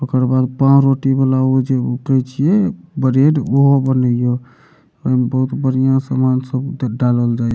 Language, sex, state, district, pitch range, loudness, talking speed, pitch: Maithili, male, Bihar, Supaul, 130-135 Hz, -15 LUFS, 185 wpm, 130 Hz